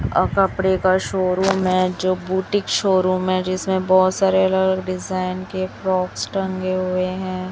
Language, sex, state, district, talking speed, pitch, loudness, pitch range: Hindi, male, Chhattisgarh, Raipur, 150 wpm, 185 Hz, -20 LUFS, 185-190 Hz